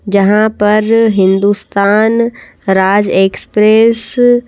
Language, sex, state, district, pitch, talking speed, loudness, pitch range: Hindi, female, Madhya Pradesh, Bhopal, 210 Hz, 80 wpm, -10 LUFS, 200-225 Hz